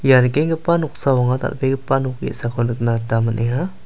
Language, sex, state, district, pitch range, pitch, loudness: Garo, male, Meghalaya, South Garo Hills, 115-135 Hz, 125 Hz, -19 LUFS